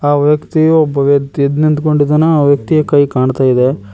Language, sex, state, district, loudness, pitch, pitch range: Kannada, male, Karnataka, Koppal, -12 LUFS, 145 Hz, 140-155 Hz